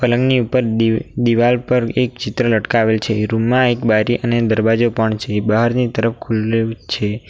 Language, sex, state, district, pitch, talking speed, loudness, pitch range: Gujarati, male, Gujarat, Valsad, 115 Hz, 175 wpm, -16 LUFS, 110-120 Hz